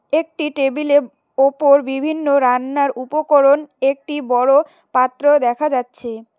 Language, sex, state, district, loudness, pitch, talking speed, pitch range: Bengali, female, West Bengal, Cooch Behar, -16 LUFS, 280 Hz, 115 wpm, 260-295 Hz